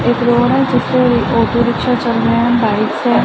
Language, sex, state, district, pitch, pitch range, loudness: Hindi, female, Bihar, Gaya, 240 Hz, 230-245 Hz, -13 LUFS